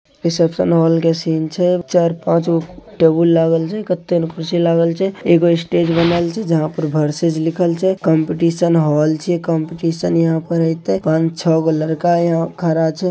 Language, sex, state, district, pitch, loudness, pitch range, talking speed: Maithili, male, Bihar, Samastipur, 165 Hz, -16 LUFS, 160-170 Hz, 180 wpm